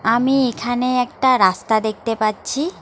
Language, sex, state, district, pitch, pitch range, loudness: Bengali, female, West Bengal, Alipurduar, 245 Hz, 220-255 Hz, -18 LUFS